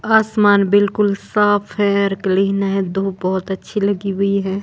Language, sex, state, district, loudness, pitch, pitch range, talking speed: Hindi, female, Himachal Pradesh, Shimla, -17 LUFS, 200 Hz, 195-205 Hz, 170 wpm